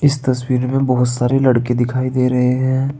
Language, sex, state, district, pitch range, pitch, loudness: Hindi, male, Uttar Pradesh, Saharanpur, 125-130 Hz, 130 Hz, -16 LUFS